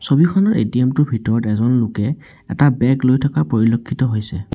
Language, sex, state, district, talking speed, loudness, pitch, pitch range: Assamese, male, Assam, Sonitpur, 160 wpm, -17 LUFS, 125 Hz, 115-145 Hz